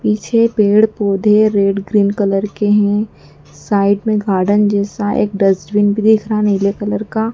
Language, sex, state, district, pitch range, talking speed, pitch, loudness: Hindi, female, Madhya Pradesh, Dhar, 200-210 Hz, 165 wpm, 205 Hz, -14 LUFS